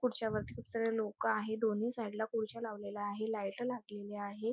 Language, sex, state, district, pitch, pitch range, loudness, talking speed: Marathi, female, Maharashtra, Nagpur, 220 Hz, 205-225 Hz, -38 LUFS, 145 wpm